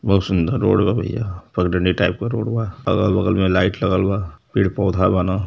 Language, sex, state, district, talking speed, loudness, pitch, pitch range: Hindi, male, Uttar Pradesh, Varanasi, 185 wpm, -19 LUFS, 95 Hz, 90-110 Hz